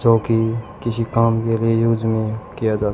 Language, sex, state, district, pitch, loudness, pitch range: Hindi, male, Haryana, Charkhi Dadri, 115 Hz, -19 LUFS, 110-115 Hz